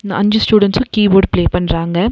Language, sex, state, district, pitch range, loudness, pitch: Tamil, female, Tamil Nadu, Nilgiris, 180-210 Hz, -13 LUFS, 200 Hz